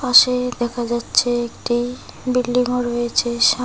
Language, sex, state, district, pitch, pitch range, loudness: Bengali, female, West Bengal, Cooch Behar, 245 Hz, 240-250 Hz, -19 LUFS